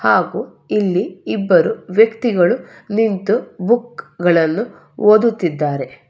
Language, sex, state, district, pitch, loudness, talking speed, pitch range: Kannada, female, Karnataka, Bangalore, 195 Hz, -17 LUFS, 80 wpm, 175-220 Hz